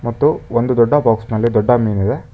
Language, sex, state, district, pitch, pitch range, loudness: Kannada, male, Karnataka, Bangalore, 120 Hz, 110-125 Hz, -15 LUFS